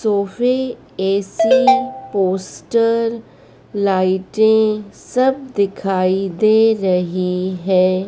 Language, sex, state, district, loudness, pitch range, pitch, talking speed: Hindi, female, Madhya Pradesh, Dhar, -17 LUFS, 185-230 Hz, 200 Hz, 65 wpm